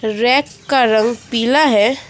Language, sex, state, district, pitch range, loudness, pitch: Hindi, female, West Bengal, Alipurduar, 220-260 Hz, -14 LUFS, 235 Hz